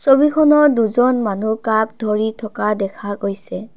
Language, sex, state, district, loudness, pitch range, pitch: Assamese, female, Assam, Kamrup Metropolitan, -17 LUFS, 210-255 Hz, 220 Hz